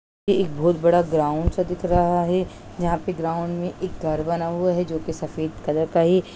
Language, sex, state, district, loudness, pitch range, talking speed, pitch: Hindi, female, Bihar, Saran, -23 LUFS, 160-180 Hz, 225 wpm, 170 Hz